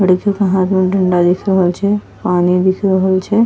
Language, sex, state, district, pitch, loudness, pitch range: Angika, female, Bihar, Bhagalpur, 190 Hz, -14 LUFS, 180-195 Hz